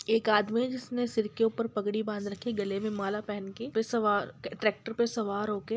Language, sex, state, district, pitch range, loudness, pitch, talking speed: Hindi, male, Bihar, Sitamarhi, 205-230 Hz, -31 LUFS, 220 Hz, 210 wpm